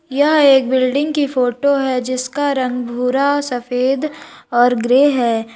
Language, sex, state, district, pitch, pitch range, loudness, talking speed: Hindi, female, Uttar Pradesh, Lalitpur, 260 Hz, 250-285 Hz, -16 LUFS, 140 wpm